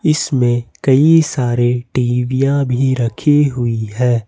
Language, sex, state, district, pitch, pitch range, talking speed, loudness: Hindi, male, Jharkhand, Ranchi, 125 Hz, 120-140 Hz, 110 wpm, -15 LUFS